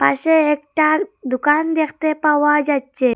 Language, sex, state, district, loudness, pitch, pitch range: Bengali, female, Assam, Hailakandi, -17 LUFS, 295 Hz, 280-310 Hz